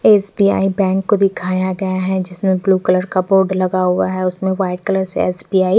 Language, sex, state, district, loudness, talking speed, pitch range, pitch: Hindi, female, Chandigarh, Chandigarh, -16 LUFS, 205 wpm, 185-195 Hz, 190 Hz